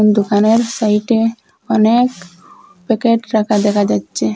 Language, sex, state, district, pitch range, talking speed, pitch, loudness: Bengali, female, Assam, Hailakandi, 205-230 Hz, 95 wpm, 215 Hz, -15 LUFS